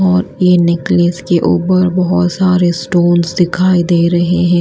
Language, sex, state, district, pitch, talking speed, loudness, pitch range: Hindi, female, Himachal Pradesh, Shimla, 175 Hz, 155 wpm, -12 LUFS, 175-180 Hz